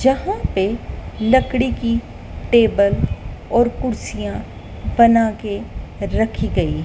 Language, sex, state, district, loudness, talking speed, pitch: Hindi, female, Madhya Pradesh, Dhar, -19 LUFS, 85 wpm, 225 Hz